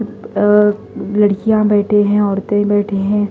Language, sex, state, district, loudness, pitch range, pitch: Hindi, female, Delhi, New Delhi, -14 LUFS, 205-210 Hz, 205 Hz